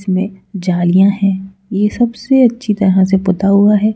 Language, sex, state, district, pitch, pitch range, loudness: Hindi, female, Madhya Pradesh, Bhopal, 195 Hz, 190-210 Hz, -13 LUFS